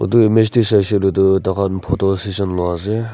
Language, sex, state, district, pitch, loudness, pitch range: Nagamese, male, Nagaland, Kohima, 100 Hz, -16 LUFS, 95-110 Hz